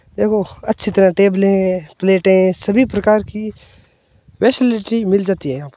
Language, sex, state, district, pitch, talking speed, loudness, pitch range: Hindi, male, Rajasthan, Churu, 200 Hz, 165 wpm, -15 LUFS, 190-215 Hz